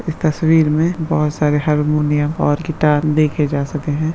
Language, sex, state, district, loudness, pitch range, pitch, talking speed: Hindi, male, Bihar, Darbhanga, -16 LUFS, 150-160 Hz, 150 Hz, 175 wpm